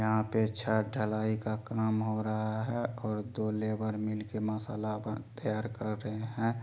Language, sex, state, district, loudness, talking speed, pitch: Maithili, male, Bihar, Supaul, -34 LUFS, 180 wpm, 110 Hz